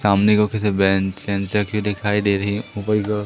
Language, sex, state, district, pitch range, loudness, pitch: Hindi, male, Madhya Pradesh, Umaria, 100-105 Hz, -20 LUFS, 105 Hz